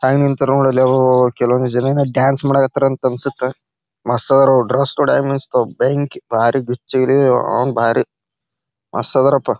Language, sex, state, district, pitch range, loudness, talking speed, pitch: Kannada, male, Karnataka, Bijapur, 125-135 Hz, -15 LUFS, 155 wpm, 130 Hz